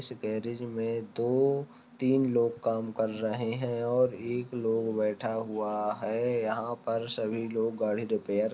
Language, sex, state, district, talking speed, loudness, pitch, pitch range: Hindi, male, Chhattisgarh, Rajnandgaon, 160 wpm, -30 LUFS, 115 Hz, 110-120 Hz